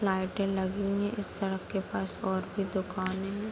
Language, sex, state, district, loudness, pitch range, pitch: Hindi, female, Bihar, Kishanganj, -32 LUFS, 190-200 Hz, 195 Hz